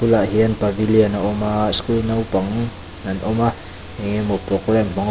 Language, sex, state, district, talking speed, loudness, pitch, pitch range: Mizo, male, Mizoram, Aizawl, 190 wpm, -19 LUFS, 105 Hz, 100-110 Hz